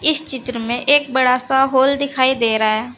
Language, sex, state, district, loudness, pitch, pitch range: Hindi, female, Uttar Pradesh, Saharanpur, -16 LUFS, 260 Hz, 245-275 Hz